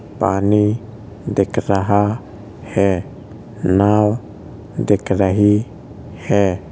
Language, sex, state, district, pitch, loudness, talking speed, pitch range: Hindi, male, Uttar Pradesh, Jalaun, 105 Hz, -17 LUFS, 70 wpm, 100-105 Hz